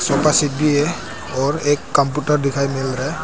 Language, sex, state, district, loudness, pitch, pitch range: Hindi, male, Arunachal Pradesh, Papum Pare, -18 LUFS, 145 Hz, 140-150 Hz